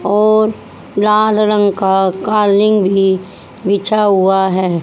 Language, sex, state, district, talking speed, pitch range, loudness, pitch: Hindi, female, Haryana, Jhajjar, 110 wpm, 190-215 Hz, -13 LUFS, 200 Hz